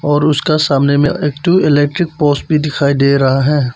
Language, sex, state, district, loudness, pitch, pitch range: Hindi, male, Arunachal Pradesh, Papum Pare, -13 LUFS, 145 Hz, 140-150 Hz